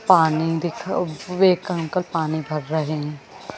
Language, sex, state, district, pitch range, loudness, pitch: Hindi, female, Madhya Pradesh, Bhopal, 155-180 Hz, -22 LUFS, 165 Hz